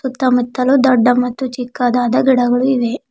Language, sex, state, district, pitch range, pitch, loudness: Kannada, female, Karnataka, Bidar, 245-260 Hz, 250 Hz, -15 LUFS